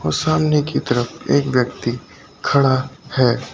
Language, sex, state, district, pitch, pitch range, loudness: Hindi, male, Uttar Pradesh, Lucknow, 130 Hz, 125-145 Hz, -19 LUFS